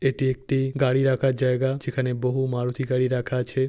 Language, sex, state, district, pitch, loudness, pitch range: Bengali, male, West Bengal, Paschim Medinipur, 130 Hz, -24 LUFS, 125-135 Hz